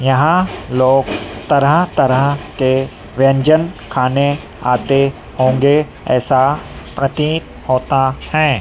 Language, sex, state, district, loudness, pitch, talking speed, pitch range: Hindi, female, Madhya Pradesh, Dhar, -15 LUFS, 135 Hz, 90 wpm, 130-145 Hz